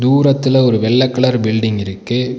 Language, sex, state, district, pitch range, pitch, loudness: Tamil, male, Tamil Nadu, Nilgiris, 110-130 Hz, 125 Hz, -14 LUFS